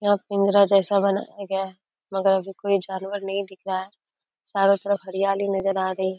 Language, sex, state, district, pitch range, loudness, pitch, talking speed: Hindi, female, Bihar, Kishanganj, 190-200 Hz, -23 LUFS, 195 Hz, 195 wpm